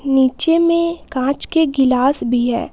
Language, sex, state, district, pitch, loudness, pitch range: Hindi, female, Jharkhand, Palamu, 275 Hz, -15 LUFS, 260-330 Hz